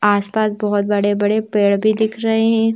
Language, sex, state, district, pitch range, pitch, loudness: Hindi, female, Madhya Pradesh, Bhopal, 205-220 Hz, 210 Hz, -17 LUFS